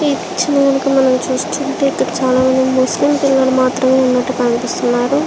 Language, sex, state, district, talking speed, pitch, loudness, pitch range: Telugu, female, Andhra Pradesh, Srikakulam, 135 wpm, 260 Hz, -14 LUFS, 255-275 Hz